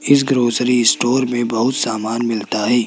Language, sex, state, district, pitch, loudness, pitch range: Hindi, male, Rajasthan, Jaipur, 120 Hz, -16 LUFS, 115-125 Hz